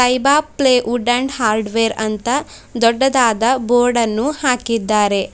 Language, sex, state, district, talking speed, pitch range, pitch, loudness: Kannada, female, Karnataka, Bidar, 90 wpm, 225-255 Hz, 245 Hz, -16 LUFS